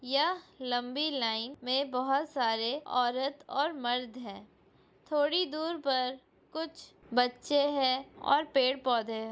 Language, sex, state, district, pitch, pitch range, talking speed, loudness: Hindi, female, Chhattisgarh, Raigarh, 265 Hz, 245-290 Hz, 120 wpm, -31 LUFS